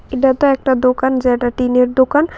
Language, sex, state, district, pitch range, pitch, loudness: Bengali, female, Tripura, West Tripura, 250-265 Hz, 260 Hz, -14 LUFS